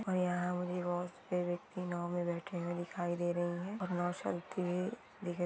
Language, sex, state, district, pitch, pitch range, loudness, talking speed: Hindi, female, West Bengal, Jhargram, 175 Hz, 175-180 Hz, -38 LUFS, 200 wpm